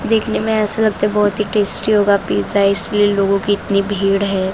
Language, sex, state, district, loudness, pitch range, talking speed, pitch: Hindi, female, Maharashtra, Mumbai Suburban, -16 LUFS, 200-210 Hz, 225 wpm, 205 Hz